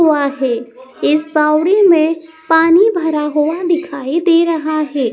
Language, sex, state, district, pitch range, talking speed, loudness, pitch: Hindi, male, Madhya Pradesh, Dhar, 295-335 Hz, 140 wpm, -14 LUFS, 315 Hz